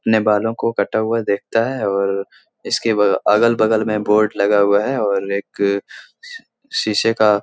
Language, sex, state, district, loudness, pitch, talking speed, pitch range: Hindi, male, Bihar, Jahanabad, -17 LUFS, 105 Hz, 185 wpm, 100-115 Hz